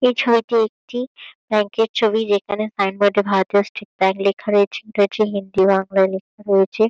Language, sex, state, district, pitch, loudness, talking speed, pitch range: Bengali, female, West Bengal, Kolkata, 205 Hz, -19 LUFS, 180 wpm, 195-220 Hz